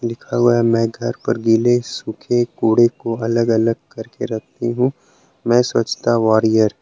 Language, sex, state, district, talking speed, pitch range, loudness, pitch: Hindi, male, Jharkhand, Palamu, 160 wpm, 115-120 Hz, -17 LUFS, 115 Hz